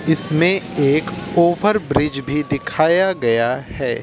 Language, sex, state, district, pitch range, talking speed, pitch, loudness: Hindi, male, Uttar Pradesh, Varanasi, 145-175 Hz, 105 wpm, 160 Hz, -18 LUFS